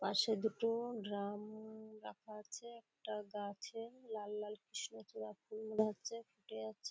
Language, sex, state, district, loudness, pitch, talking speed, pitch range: Bengali, female, West Bengal, Kolkata, -44 LUFS, 215 Hz, 130 wpm, 205-220 Hz